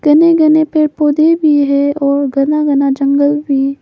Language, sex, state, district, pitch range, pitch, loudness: Hindi, female, Arunachal Pradesh, Papum Pare, 280-310 Hz, 290 Hz, -12 LUFS